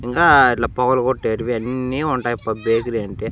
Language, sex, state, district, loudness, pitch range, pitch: Telugu, male, Andhra Pradesh, Annamaya, -18 LUFS, 115-130 Hz, 120 Hz